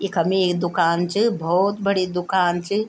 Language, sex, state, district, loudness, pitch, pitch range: Garhwali, female, Uttarakhand, Tehri Garhwal, -20 LUFS, 185 Hz, 175-200 Hz